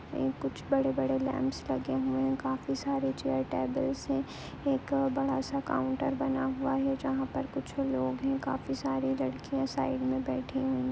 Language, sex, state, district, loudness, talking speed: Hindi, female, Uttar Pradesh, Deoria, -32 LUFS, 175 wpm